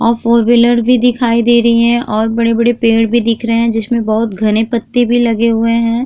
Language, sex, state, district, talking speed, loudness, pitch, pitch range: Hindi, female, Uttar Pradesh, Jyotiba Phule Nagar, 230 wpm, -12 LUFS, 230 Hz, 230-235 Hz